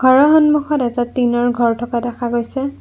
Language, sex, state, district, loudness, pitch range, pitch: Assamese, female, Assam, Kamrup Metropolitan, -16 LUFS, 240-270 Hz, 245 Hz